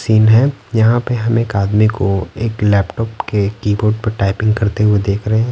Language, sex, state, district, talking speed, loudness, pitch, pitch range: Hindi, male, Bihar, Patna, 205 wpm, -15 LUFS, 110 Hz, 100-115 Hz